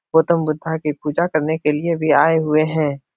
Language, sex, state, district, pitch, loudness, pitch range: Hindi, male, Uttar Pradesh, Etah, 155 Hz, -18 LUFS, 150-160 Hz